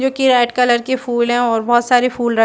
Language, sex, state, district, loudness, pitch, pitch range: Hindi, female, Chhattisgarh, Bastar, -15 LUFS, 245 Hz, 240-255 Hz